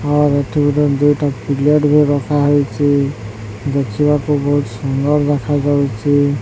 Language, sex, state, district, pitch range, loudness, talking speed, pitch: Odia, male, Odisha, Sambalpur, 140-145 Hz, -15 LUFS, 110 wpm, 145 Hz